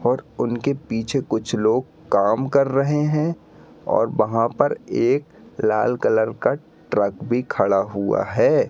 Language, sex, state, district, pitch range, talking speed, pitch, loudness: Hindi, male, Madhya Pradesh, Katni, 110-140 Hz, 145 wpm, 125 Hz, -21 LUFS